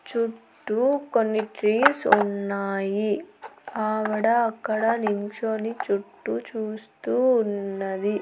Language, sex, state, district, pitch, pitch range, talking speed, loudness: Telugu, female, Andhra Pradesh, Annamaya, 215 Hz, 205-230 Hz, 75 wpm, -25 LUFS